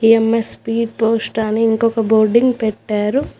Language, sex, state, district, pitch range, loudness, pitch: Telugu, female, Telangana, Hyderabad, 220-230 Hz, -16 LUFS, 225 Hz